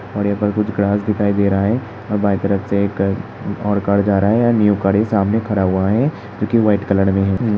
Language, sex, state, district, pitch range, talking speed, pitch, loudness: Hindi, male, Uttar Pradesh, Hamirpur, 100-105 Hz, 245 wpm, 100 Hz, -17 LUFS